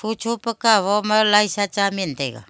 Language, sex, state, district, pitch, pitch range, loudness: Wancho, female, Arunachal Pradesh, Longding, 210 Hz, 200-220 Hz, -19 LUFS